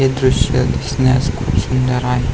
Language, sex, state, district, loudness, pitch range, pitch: Marathi, male, Maharashtra, Pune, -16 LUFS, 125-130 Hz, 130 Hz